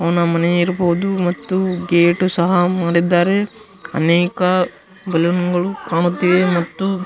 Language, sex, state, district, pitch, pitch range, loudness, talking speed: Kannada, male, Karnataka, Gulbarga, 175 Hz, 170-185 Hz, -17 LUFS, 100 wpm